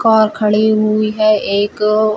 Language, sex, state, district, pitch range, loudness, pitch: Hindi, female, Chhattisgarh, Rajnandgaon, 210-215 Hz, -14 LUFS, 215 Hz